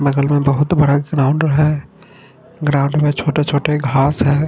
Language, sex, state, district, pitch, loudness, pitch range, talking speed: Hindi, male, Punjab, Fazilka, 145 Hz, -15 LUFS, 140-150 Hz, 160 wpm